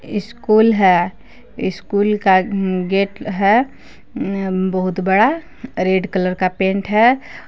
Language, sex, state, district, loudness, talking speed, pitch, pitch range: Hindi, female, Jharkhand, Palamu, -17 LUFS, 105 wpm, 195 Hz, 185-215 Hz